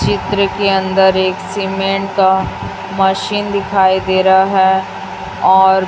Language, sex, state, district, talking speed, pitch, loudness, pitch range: Hindi, female, Chhattisgarh, Raipur, 120 wpm, 190 Hz, -13 LUFS, 190-195 Hz